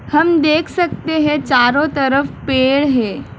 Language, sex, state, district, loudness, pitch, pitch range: Hindi, female, West Bengal, Alipurduar, -15 LUFS, 285 Hz, 265-310 Hz